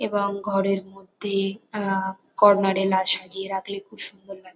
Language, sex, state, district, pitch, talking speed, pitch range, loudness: Bengali, female, West Bengal, North 24 Parganas, 195 Hz, 170 wpm, 190-200 Hz, -23 LUFS